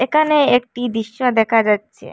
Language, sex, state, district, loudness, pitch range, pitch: Bengali, female, Assam, Hailakandi, -17 LUFS, 225-260 Hz, 245 Hz